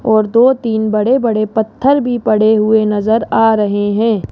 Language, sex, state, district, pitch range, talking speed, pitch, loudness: Hindi, female, Rajasthan, Jaipur, 215-230 Hz, 180 wpm, 220 Hz, -13 LUFS